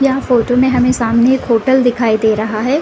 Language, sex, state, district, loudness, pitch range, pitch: Hindi, female, Bihar, Gopalganj, -13 LUFS, 230-260 Hz, 245 Hz